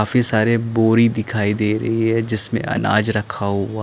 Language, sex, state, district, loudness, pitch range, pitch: Hindi, male, Chandigarh, Chandigarh, -18 LUFS, 105-115 Hz, 110 Hz